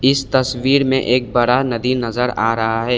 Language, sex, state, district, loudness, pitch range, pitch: Hindi, male, Assam, Kamrup Metropolitan, -17 LUFS, 120-130 Hz, 125 Hz